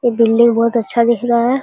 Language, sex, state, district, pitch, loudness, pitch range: Hindi, male, Bihar, Jamui, 235 Hz, -14 LUFS, 230-240 Hz